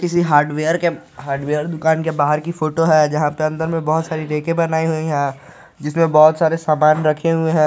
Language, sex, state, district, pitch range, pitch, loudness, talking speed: Hindi, male, Jharkhand, Garhwa, 150-165 Hz, 155 Hz, -17 LUFS, 220 wpm